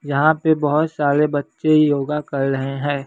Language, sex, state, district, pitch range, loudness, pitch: Hindi, male, Bihar, West Champaran, 140-155 Hz, -18 LUFS, 145 Hz